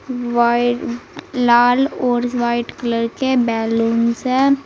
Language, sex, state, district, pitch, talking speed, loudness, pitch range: Hindi, female, Uttar Pradesh, Saharanpur, 240 Hz, 105 wpm, -17 LUFS, 235-250 Hz